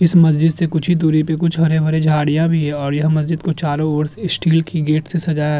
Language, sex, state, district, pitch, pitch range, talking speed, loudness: Hindi, male, Uttar Pradesh, Jyotiba Phule Nagar, 160 Hz, 155-165 Hz, 280 wpm, -16 LUFS